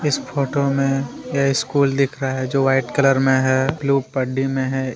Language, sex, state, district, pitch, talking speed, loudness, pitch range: Hindi, male, Jharkhand, Deoghar, 135 Hz, 195 wpm, -19 LUFS, 130-140 Hz